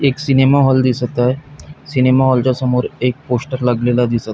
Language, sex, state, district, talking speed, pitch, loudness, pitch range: Marathi, male, Maharashtra, Pune, 180 wpm, 130 Hz, -15 LUFS, 125-135 Hz